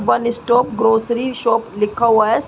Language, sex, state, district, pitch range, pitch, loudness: Hindi, female, Uttar Pradesh, Gorakhpur, 225-240 Hz, 235 Hz, -17 LUFS